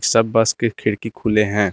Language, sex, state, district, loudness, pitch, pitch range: Hindi, male, Jharkhand, Garhwa, -19 LUFS, 115 Hz, 105-115 Hz